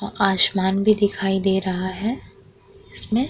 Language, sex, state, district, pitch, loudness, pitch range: Hindi, female, Uttar Pradesh, Muzaffarnagar, 195 Hz, -21 LUFS, 190-210 Hz